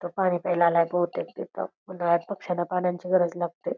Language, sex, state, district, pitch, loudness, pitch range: Marathi, female, Karnataka, Belgaum, 175 Hz, -26 LUFS, 175-180 Hz